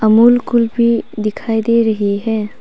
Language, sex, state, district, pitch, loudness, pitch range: Hindi, female, Arunachal Pradesh, Papum Pare, 225 Hz, -14 LUFS, 215-235 Hz